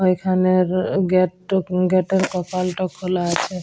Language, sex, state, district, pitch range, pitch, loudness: Bengali, female, West Bengal, Jalpaiguri, 180-185 Hz, 185 Hz, -20 LUFS